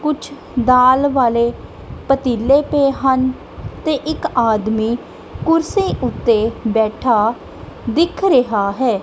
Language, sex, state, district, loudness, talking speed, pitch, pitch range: Punjabi, female, Punjab, Kapurthala, -16 LUFS, 100 wpm, 255 Hz, 230-290 Hz